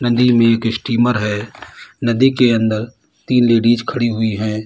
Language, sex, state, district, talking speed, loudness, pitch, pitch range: Hindi, male, Uttar Pradesh, Lalitpur, 165 wpm, -15 LUFS, 115 Hz, 110-120 Hz